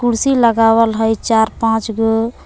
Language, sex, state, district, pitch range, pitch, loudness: Magahi, female, Jharkhand, Palamu, 225-230 Hz, 225 Hz, -14 LUFS